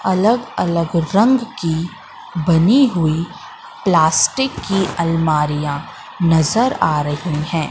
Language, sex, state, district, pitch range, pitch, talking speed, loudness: Hindi, female, Madhya Pradesh, Katni, 160-225 Hz, 170 Hz, 100 wpm, -17 LUFS